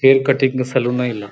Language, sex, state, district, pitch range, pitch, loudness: Kannada, male, Karnataka, Belgaum, 125-135 Hz, 130 Hz, -17 LUFS